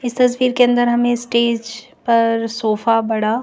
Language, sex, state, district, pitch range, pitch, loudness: Hindi, female, Madhya Pradesh, Bhopal, 230-245 Hz, 235 Hz, -16 LUFS